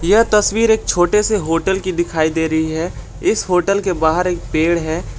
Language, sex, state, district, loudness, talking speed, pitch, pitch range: Hindi, male, Jharkhand, Garhwa, -16 LUFS, 210 wpm, 180 Hz, 160-200 Hz